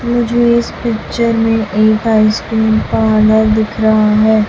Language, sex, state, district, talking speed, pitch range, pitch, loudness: Hindi, female, Chhattisgarh, Raipur, 135 wpm, 215-230 Hz, 220 Hz, -12 LUFS